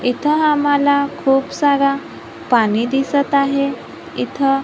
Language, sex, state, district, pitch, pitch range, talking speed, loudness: Marathi, female, Maharashtra, Gondia, 275 Hz, 270-285 Hz, 105 wpm, -16 LUFS